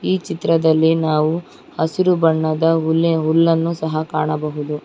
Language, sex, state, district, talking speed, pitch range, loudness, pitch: Kannada, female, Karnataka, Bangalore, 110 wpm, 155-165 Hz, -17 LUFS, 160 Hz